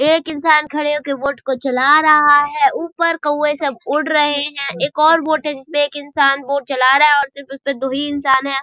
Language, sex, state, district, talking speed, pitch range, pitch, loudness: Hindi, female, Bihar, Saharsa, 235 wpm, 275-300 Hz, 290 Hz, -15 LUFS